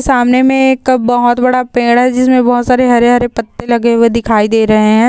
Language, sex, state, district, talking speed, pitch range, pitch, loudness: Hindi, female, Rajasthan, Churu, 210 wpm, 235-255 Hz, 245 Hz, -10 LUFS